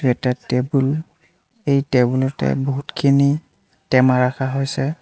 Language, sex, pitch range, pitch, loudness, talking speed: Assamese, male, 130-145 Hz, 135 Hz, -19 LUFS, 95 wpm